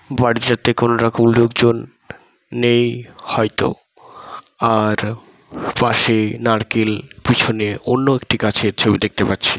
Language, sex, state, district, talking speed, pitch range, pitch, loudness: Bengali, male, West Bengal, Dakshin Dinajpur, 100 wpm, 105-120 Hz, 115 Hz, -17 LUFS